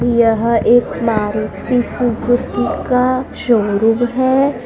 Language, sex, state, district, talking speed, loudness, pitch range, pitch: Hindi, female, Madhya Pradesh, Dhar, 90 wpm, -15 LUFS, 225-250 Hz, 240 Hz